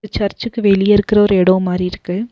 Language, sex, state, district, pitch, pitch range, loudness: Tamil, female, Tamil Nadu, Nilgiris, 200 Hz, 185-210 Hz, -15 LUFS